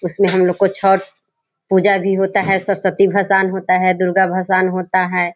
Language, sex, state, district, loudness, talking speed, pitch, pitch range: Hindi, female, Bihar, Sitamarhi, -15 LUFS, 155 wpm, 190 Hz, 185-195 Hz